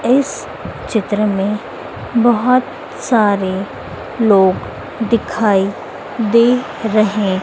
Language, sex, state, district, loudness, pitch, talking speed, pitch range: Hindi, female, Madhya Pradesh, Dhar, -15 LUFS, 220 Hz, 75 wpm, 200-240 Hz